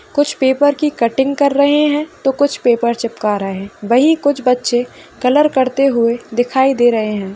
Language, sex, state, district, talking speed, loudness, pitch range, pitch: Hindi, female, Bihar, Bhagalpur, 185 wpm, -15 LUFS, 235-285 Hz, 260 Hz